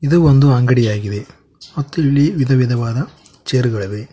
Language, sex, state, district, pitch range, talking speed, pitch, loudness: Kannada, male, Karnataka, Koppal, 115-145 Hz, 115 wpm, 130 Hz, -15 LUFS